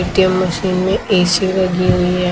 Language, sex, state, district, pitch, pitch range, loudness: Hindi, male, Maharashtra, Mumbai Suburban, 185 Hz, 180-190 Hz, -15 LUFS